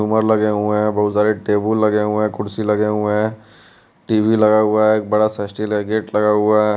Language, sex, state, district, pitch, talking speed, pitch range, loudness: Hindi, male, Bihar, West Champaran, 105 Hz, 230 wpm, 105-110 Hz, -17 LUFS